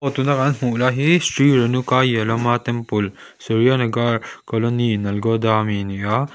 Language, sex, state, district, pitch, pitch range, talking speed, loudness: Mizo, male, Mizoram, Aizawl, 120 Hz, 110-130 Hz, 115 wpm, -19 LUFS